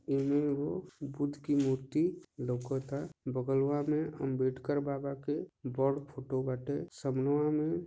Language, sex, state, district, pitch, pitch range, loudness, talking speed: Bhojpuri, male, Jharkhand, Sahebganj, 140 Hz, 135-145 Hz, -34 LUFS, 145 wpm